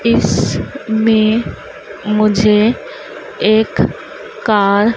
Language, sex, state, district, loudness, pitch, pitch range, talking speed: Hindi, female, Madhya Pradesh, Dhar, -14 LUFS, 220 Hz, 210-245 Hz, 60 wpm